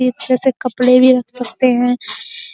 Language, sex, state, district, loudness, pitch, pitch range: Hindi, female, Uttar Pradesh, Jyotiba Phule Nagar, -14 LUFS, 255 Hz, 250-255 Hz